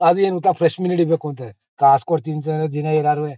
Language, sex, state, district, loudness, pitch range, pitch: Kannada, male, Karnataka, Mysore, -18 LUFS, 150-170 Hz, 155 Hz